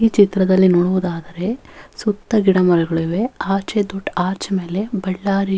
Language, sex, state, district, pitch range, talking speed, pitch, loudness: Kannada, female, Karnataka, Bellary, 180-205 Hz, 120 wpm, 195 Hz, -18 LUFS